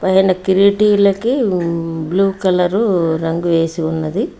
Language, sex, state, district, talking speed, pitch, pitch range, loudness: Telugu, female, Telangana, Hyderabad, 95 wpm, 185 Hz, 165-200 Hz, -15 LUFS